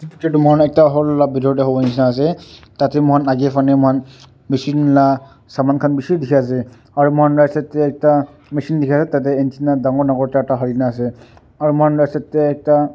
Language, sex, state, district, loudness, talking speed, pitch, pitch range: Nagamese, male, Nagaland, Dimapur, -16 LUFS, 210 wpm, 140 Hz, 135-150 Hz